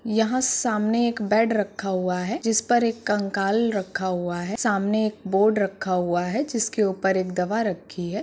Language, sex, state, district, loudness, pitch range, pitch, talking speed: Hindi, female, Bihar, Purnia, -23 LUFS, 190-225 Hz, 205 Hz, 195 wpm